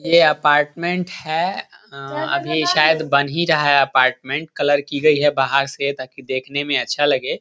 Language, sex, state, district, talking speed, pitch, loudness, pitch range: Hindi, male, Bihar, Jahanabad, 195 wpm, 145 Hz, -18 LUFS, 140-160 Hz